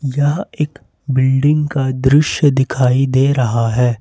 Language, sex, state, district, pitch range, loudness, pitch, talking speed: Hindi, male, Jharkhand, Ranchi, 130-145 Hz, -15 LUFS, 135 Hz, 135 wpm